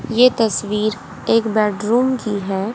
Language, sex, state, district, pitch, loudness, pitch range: Hindi, female, Haryana, Rohtak, 215 Hz, -18 LUFS, 205-235 Hz